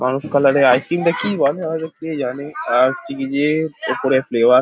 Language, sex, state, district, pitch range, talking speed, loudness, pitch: Bengali, male, West Bengal, Paschim Medinipur, 130-160 Hz, 220 wpm, -18 LUFS, 135 Hz